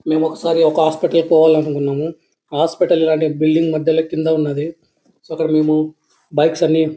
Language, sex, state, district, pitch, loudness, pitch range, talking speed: Telugu, male, Andhra Pradesh, Anantapur, 160 Hz, -16 LUFS, 155-160 Hz, 130 wpm